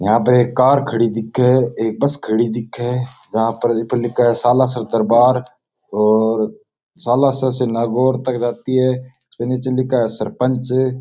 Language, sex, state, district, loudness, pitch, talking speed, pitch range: Rajasthani, male, Rajasthan, Nagaur, -17 LUFS, 125 Hz, 165 wpm, 115-130 Hz